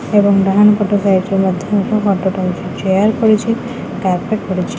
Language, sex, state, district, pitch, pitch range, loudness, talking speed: Odia, female, Odisha, Khordha, 200 Hz, 190-210 Hz, -14 LUFS, 175 wpm